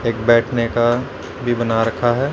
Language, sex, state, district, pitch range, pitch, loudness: Hindi, male, Haryana, Rohtak, 115-120 Hz, 120 Hz, -18 LUFS